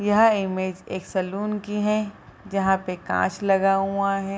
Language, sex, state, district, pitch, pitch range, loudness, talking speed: Hindi, female, Bihar, Bhagalpur, 195 Hz, 190-205 Hz, -24 LUFS, 165 wpm